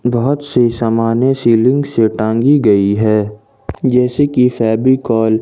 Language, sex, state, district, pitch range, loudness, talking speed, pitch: Hindi, male, Jharkhand, Ranchi, 110-130 Hz, -13 LUFS, 135 wpm, 120 Hz